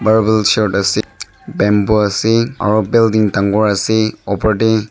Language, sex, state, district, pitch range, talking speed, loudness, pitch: Nagamese, male, Nagaland, Dimapur, 100-110 Hz, 145 wpm, -14 LUFS, 110 Hz